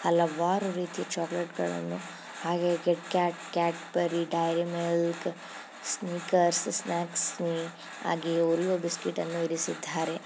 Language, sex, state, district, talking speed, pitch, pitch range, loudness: Kannada, female, Karnataka, Dharwad, 100 wpm, 170 Hz, 165-175 Hz, -30 LUFS